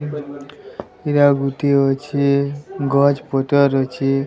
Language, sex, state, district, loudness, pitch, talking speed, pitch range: Odia, male, Odisha, Sambalpur, -17 LUFS, 140 Hz, 85 wpm, 135-145 Hz